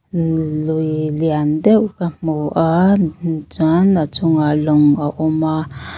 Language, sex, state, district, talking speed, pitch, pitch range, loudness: Mizo, female, Mizoram, Aizawl, 130 wpm, 160 Hz, 150-165 Hz, -16 LUFS